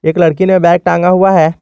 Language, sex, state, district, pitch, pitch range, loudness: Hindi, male, Jharkhand, Garhwa, 175 Hz, 165-185 Hz, -10 LUFS